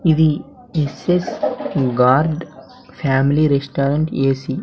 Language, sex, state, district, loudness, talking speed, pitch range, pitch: Telugu, male, Andhra Pradesh, Sri Satya Sai, -18 LUFS, 90 wpm, 135-160 Hz, 145 Hz